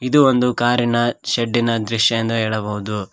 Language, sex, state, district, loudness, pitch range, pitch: Kannada, male, Karnataka, Koppal, -18 LUFS, 110-120 Hz, 115 Hz